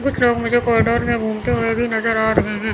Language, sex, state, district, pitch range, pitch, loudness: Hindi, female, Chandigarh, Chandigarh, 220-240 Hz, 230 Hz, -18 LUFS